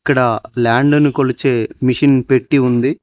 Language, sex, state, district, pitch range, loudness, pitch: Telugu, male, Telangana, Mahabubabad, 125-140 Hz, -14 LUFS, 130 Hz